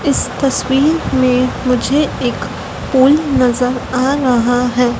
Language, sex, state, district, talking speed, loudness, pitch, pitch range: Hindi, female, Madhya Pradesh, Dhar, 120 wpm, -14 LUFS, 255 Hz, 250-275 Hz